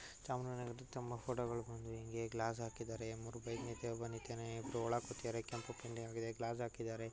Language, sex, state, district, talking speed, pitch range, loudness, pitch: Kannada, male, Karnataka, Mysore, 175 wpm, 115-120 Hz, -45 LUFS, 115 Hz